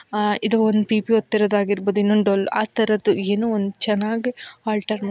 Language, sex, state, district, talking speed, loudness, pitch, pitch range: Kannada, female, Karnataka, Dharwad, 155 wpm, -20 LUFS, 210 Hz, 205-220 Hz